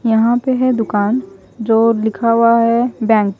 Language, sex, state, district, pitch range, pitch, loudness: Hindi, female, Chhattisgarh, Raipur, 220-240 Hz, 230 Hz, -14 LUFS